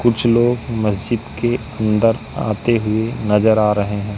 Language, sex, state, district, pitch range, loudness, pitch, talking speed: Hindi, male, Madhya Pradesh, Katni, 105-120 Hz, -17 LUFS, 110 Hz, 155 wpm